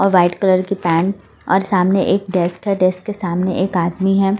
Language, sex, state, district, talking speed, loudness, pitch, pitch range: Hindi, female, Delhi, New Delhi, 220 wpm, -17 LUFS, 190 Hz, 180-195 Hz